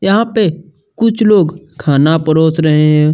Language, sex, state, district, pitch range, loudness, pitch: Hindi, male, Chhattisgarh, Kabirdham, 155-205 Hz, -12 LUFS, 165 Hz